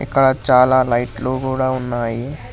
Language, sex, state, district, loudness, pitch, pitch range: Telugu, male, Telangana, Hyderabad, -17 LUFS, 130 Hz, 120-130 Hz